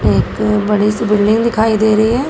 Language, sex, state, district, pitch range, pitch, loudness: Hindi, female, Uttar Pradesh, Gorakhpur, 210-220 Hz, 215 Hz, -13 LUFS